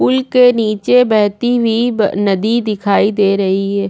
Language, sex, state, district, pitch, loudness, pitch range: Hindi, female, Chhattisgarh, Korba, 215 Hz, -13 LUFS, 200-240 Hz